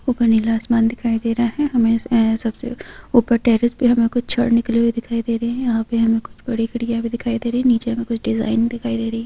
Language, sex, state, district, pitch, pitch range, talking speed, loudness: Hindi, female, Jharkhand, Sahebganj, 235 Hz, 230-240 Hz, 245 wpm, -19 LUFS